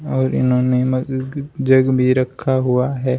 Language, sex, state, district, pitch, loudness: Hindi, male, Uttar Pradesh, Shamli, 130 Hz, -17 LUFS